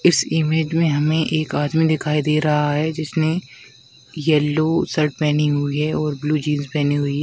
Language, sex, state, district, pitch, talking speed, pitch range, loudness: Hindi, female, West Bengal, Dakshin Dinajpur, 150 Hz, 175 wpm, 145-155 Hz, -19 LUFS